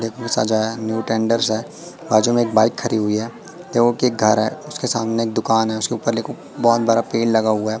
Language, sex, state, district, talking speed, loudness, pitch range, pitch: Hindi, male, Madhya Pradesh, Katni, 245 wpm, -19 LUFS, 110-120 Hz, 115 Hz